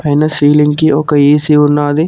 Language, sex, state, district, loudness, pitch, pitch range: Telugu, male, Telangana, Mahabubabad, -10 LUFS, 150 Hz, 145-150 Hz